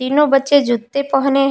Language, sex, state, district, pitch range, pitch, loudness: Hindi, female, Jharkhand, Palamu, 270-280 Hz, 275 Hz, -15 LUFS